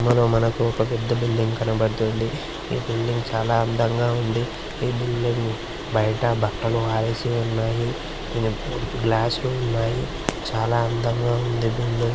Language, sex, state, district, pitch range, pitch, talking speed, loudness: Telugu, male, Andhra Pradesh, Srikakulam, 115-120 Hz, 115 Hz, 120 wpm, -23 LUFS